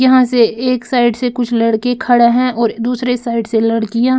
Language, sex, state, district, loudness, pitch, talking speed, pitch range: Hindi, female, Bihar, Patna, -14 LUFS, 240 Hz, 200 wpm, 230-250 Hz